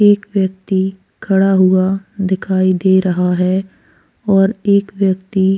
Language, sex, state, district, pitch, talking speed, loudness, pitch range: Hindi, female, Chhattisgarh, Korba, 190 Hz, 130 wpm, -15 LUFS, 190-195 Hz